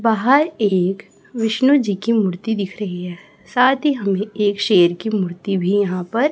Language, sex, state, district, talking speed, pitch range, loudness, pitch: Hindi, male, Chhattisgarh, Raipur, 180 wpm, 190-230 Hz, -18 LUFS, 205 Hz